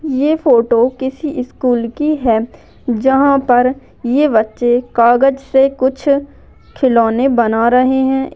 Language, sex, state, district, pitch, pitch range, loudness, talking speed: Hindi, female, Maharashtra, Dhule, 260 Hz, 240-270 Hz, -14 LUFS, 120 wpm